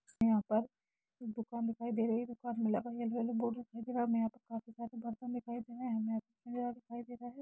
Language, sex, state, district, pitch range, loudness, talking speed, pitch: Hindi, female, Jharkhand, Jamtara, 225-240 Hz, -38 LUFS, 210 wpm, 235 Hz